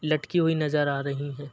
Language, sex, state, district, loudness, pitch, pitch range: Hindi, male, Uttar Pradesh, Muzaffarnagar, -26 LUFS, 150 Hz, 140-155 Hz